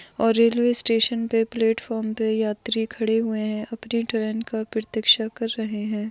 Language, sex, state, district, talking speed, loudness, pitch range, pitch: Hindi, female, Goa, North and South Goa, 165 wpm, -22 LUFS, 220-230 Hz, 225 Hz